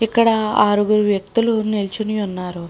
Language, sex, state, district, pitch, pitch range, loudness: Telugu, female, Andhra Pradesh, Srikakulam, 210 Hz, 200-220 Hz, -18 LUFS